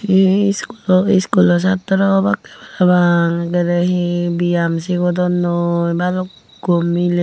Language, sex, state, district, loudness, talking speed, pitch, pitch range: Chakma, female, Tripura, Unakoti, -16 LUFS, 115 wpm, 180 Hz, 175-190 Hz